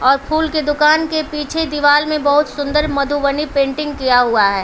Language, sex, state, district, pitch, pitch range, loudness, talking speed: Hindi, female, Bihar, Patna, 295 Hz, 280-305 Hz, -15 LUFS, 195 wpm